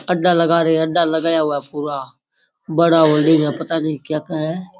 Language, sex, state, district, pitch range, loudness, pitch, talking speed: Rajasthani, male, Rajasthan, Churu, 150-165 Hz, -17 LUFS, 160 Hz, 225 wpm